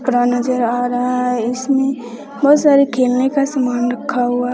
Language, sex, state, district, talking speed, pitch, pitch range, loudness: Hindi, male, Bihar, West Champaran, 170 wpm, 250 Hz, 245-270 Hz, -16 LUFS